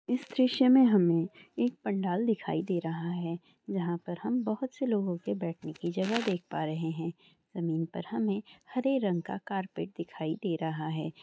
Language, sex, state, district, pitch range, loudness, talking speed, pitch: Hindi, female, Andhra Pradesh, Chittoor, 165-220 Hz, -31 LUFS, 345 wpm, 185 Hz